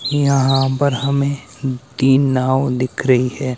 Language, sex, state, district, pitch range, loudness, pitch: Hindi, male, Himachal Pradesh, Shimla, 130-140 Hz, -17 LUFS, 135 Hz